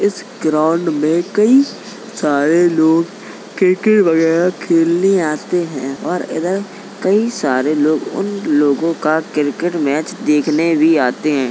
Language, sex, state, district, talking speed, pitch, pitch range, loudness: Hindi, male, Uttar Pradesh, Jalaun, 130 wpm, 165 Hz, 150-190 Hz, -15 LUFS